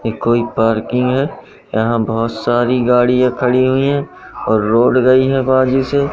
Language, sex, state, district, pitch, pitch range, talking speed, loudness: Hindi, male, Madhya Pradesh, Katni, 125 Hz, 115-130 Hz, 155 wpm, -14 LUFS